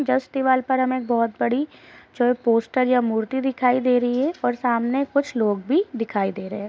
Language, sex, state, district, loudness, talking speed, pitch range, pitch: Hindi, female, Uttar Pradesh, Deoria, -22 LUFS, 215 wpm, 230-260 Hz, 250 Hz